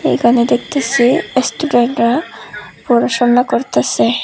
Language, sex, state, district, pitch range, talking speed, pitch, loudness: Bengali, female, Tripura, Unakoti, 240-260 Hz, 70 wpm, 245 Hz, -14 LUFS